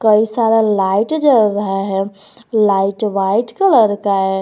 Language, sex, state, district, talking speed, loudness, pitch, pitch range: Hindi, female, Jharkhand, Garhwa, 150 wpm, -15 LUFS, 205 Hz, 195-225 Hz